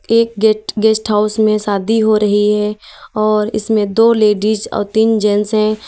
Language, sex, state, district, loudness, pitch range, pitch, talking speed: Hindi, female, Uttar Pradesh, Lalitpur, -14 LUFS, 210-220 Hz, 215 Hz, 175 wpm